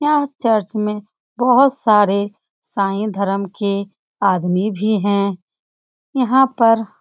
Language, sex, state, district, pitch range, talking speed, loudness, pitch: Hindi, female, Bihar, Lakhisarai, 200-245 Hz, 120 wpm, -17 LUFS, 210 Hz